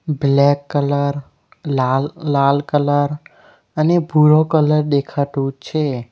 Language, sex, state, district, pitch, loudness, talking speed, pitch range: Gujarati, male, Gujarat, Valsad, 145 Hz, -17 LUFS, 100 wpm, 140-150 Hz